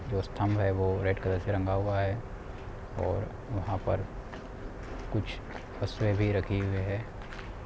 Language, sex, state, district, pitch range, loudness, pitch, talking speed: Hindi, male, Bihar, Sitamarhi, 95-105 Hz, -32 LUFS, 100 Hz, 150 wpm